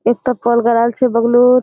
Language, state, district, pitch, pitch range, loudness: Surjapuri, Bihar, Kishanganj, 235 Hz, 235-250 Hz, -14 LUFS